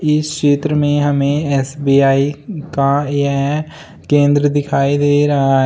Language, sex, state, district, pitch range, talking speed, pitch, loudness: Hindi, male, Uttar Pradesh, Shamli, 140-145 Hz, 115 wpm, 145 Hz, -15 LUFS